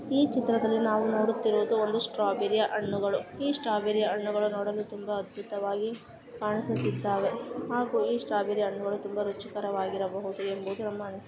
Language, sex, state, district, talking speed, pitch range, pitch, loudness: Kannada, female, Karnataka, Chamarajanagar, 115 wpm, 200-225 Hz, 210 Hz, -29 LUFS